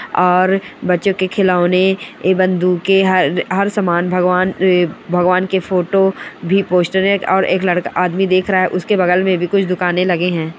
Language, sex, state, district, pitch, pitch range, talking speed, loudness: Angika, male, Bihar, Samastipur, 185 Hz, 180-190 Hz, 180 wpm, -15 LUFS